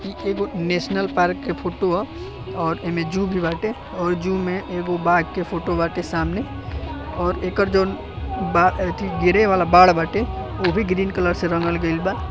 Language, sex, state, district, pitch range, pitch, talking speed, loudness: Bhojpuri, male, Uttar Pradesh, Deoria, 170-190 Hz, 175 Hz, 175 wpm, -21 LUFS